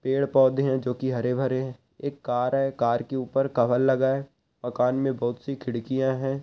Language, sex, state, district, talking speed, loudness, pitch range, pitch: Hindi, male, Rajasthan, Nagaur, 215 wpm, -25 LUFS, 125-135 Hz, 130 Hz